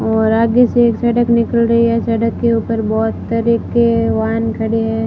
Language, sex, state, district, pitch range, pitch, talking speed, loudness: Hindi, female, Rajasthan, Barmer, 225-235 Hz, 230 Hz, 200 wpm, -15 LUFS